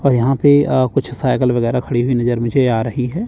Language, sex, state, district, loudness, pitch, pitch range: Hindi, male, Chandigarh, Chandigarh, -16 LUFS, 125 Hz, 120-135 Hz